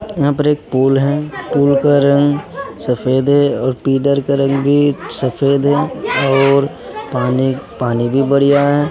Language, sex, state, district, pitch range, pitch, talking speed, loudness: Hindi, male, Bihar, Katihar, 135-145 Hz, 140 Hz, 155 wpm, -14 LUFS